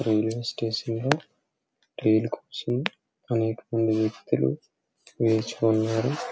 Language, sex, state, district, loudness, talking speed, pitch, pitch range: Telugu, male, Andhra Pradesh, Srikakulam, -26 LUFS, 95 wpm, 110 Hz, 110-115 Hz